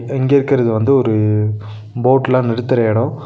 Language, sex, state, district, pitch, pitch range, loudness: Tamil, male, Tamil Nadu, Nilgiris, 120 Hz, 110-135 Hz, -15 LUFS